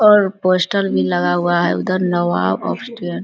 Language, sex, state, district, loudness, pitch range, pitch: Hindi, female, Bihar, Muzaffarpur, -17 LUFS, 175-195 Hz, 175 Hz